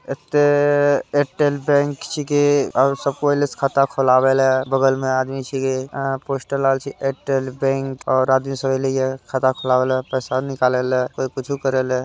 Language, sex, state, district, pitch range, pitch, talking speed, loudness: Hindi, male, Bihar, Araria, 130-140 Hz, 135 Hz, 185 wpm, -19 LUFS